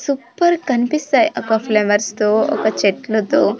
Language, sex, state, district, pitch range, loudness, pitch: Telugu, female, Andhra Pradesh, Sri Satya Sai, 215-285 Hz, -17 LUFS, 225 Hz